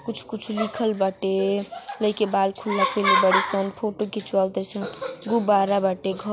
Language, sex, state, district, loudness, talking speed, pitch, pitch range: Bhojpuri, female, Uttar Pradesh, Ghazipur, -23 LUFS, 140 wpm, 205 Hz, 195-220 Hz